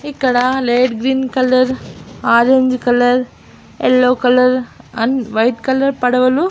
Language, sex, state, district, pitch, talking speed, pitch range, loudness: Telugu, female, Andhra Pradesh, Annamaya, 255 Hz, 120 wpm, 245-260 Hz, -14 LUFS